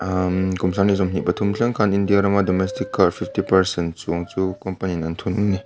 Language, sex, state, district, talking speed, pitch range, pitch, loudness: Mizo, male, Mizoram, Aizawl, 210 wpm, 90-100 Hz, 95 Hz, -21 LUFS